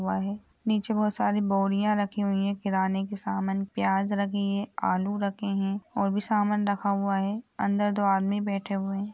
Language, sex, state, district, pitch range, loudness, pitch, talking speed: Hindi, female, Bihar, Lakhisarai, 195-205 Hz, -27 LUFS, 200 Hz, 195 wpm